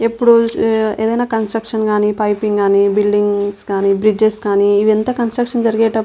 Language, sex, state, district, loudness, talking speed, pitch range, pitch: Telugu, female, Andhra Pradesh, Anantapur, -15 LUFS, 120 wpm, 205-225 Hz, 215 Hz